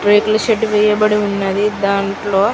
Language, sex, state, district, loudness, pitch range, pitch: Telugu, female, Telangana, Karimnagar, -15 LUFS, 200-210 Hz, 210 Hz